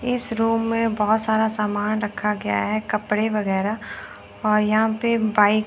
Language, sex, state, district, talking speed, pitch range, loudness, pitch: Hindi, female, Chandigarh, Chandigarh, 170 wpm, 210-225 Hz, -22 LUFS, 215 Hz